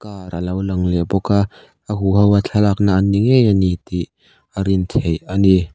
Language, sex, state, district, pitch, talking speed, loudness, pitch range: Mizo, male, Mizoram, Aizawl, 95 Hz, 220 wpm, -17 LUFS, 90-100 Hz